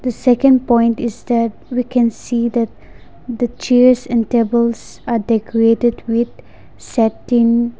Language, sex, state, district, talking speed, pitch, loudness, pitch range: English, female, Nagaland, Dimapur, 125 wpm, 235 Hz, -16 LUFS, 230-245 Hz